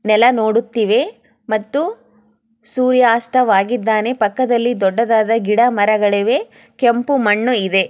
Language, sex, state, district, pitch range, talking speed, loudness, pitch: Kannada, female, Karnataka, Chamarajanagar, 215-245 Hz, 70 wpm, -15 LUFS, 230 Hz